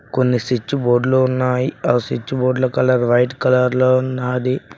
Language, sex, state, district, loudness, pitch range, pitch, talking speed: Telugu, male, Telangana, Mahabubabad, -17 LUFS, 125-130 Hz, 125 Hz, 150 wpm